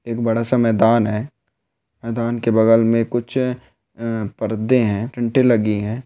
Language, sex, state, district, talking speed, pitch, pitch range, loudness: Hindi, male, Rajasthan, Churu, 160 wpm, 115 Hz, 110-120 Hz, -18 LUFS